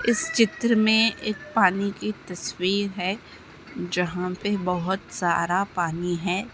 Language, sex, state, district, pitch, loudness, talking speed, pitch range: Hindi, female, Bihar, Lakhisarai, 190 Hz, -24 LUFS, 130 wpm, 180-215 Hz